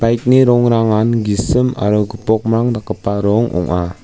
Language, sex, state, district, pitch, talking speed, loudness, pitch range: Garo, male, Meghalaya, West Garo Hills, 110 Hz, 120 wpm, -15 LUFS, 105-120 Hz